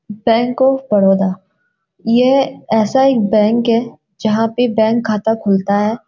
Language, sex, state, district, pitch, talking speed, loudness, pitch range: Hindi, female, Uttarakhand, Uttarkashi, 225 Hz, 140 wpm, -14 LUFS, 210-245 Hz